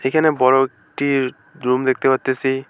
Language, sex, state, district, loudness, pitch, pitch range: Bengali, male, West Bengal, Alipurduar, -18 LUFS, 135 Hz, 130-140 Hz